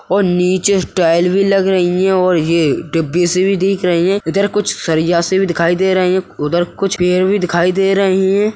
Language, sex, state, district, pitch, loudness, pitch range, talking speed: Hindi, male, Uttar Pradesh, Hamirpur, 185 Hz, -14 LUFS, 175-195 Hz, 225 wpm